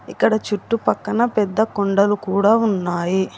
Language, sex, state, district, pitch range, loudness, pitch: Telugu, female, Telangana, Hyderabad, 195-220 Hz, -19 LUFS, 205 Hz